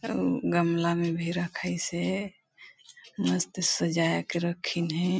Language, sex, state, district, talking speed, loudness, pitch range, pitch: Hindi, female, Chhattisgarh, Balrampur, 115 wpm, -28 LUFS, 165-185 Hz, 170 Hz